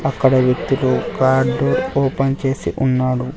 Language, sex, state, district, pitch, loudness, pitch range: Telugu, male, Andhra Pradesh, Sri Satya Sai, 130 Hz, -17 LUFS, 130-135 Hz